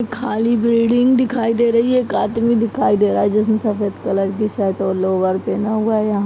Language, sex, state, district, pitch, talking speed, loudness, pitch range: Hindi, female, Bihar, Purnia, 220 Hz, 220 wpm, -17 LUFS, 205-235 Hz